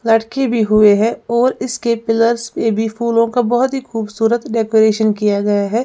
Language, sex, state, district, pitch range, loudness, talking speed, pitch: Hindi, female, Uttar Pradesh, Lalitpur, 220-235 Hz, -15 LUFS, 185 wpm, 225 Hz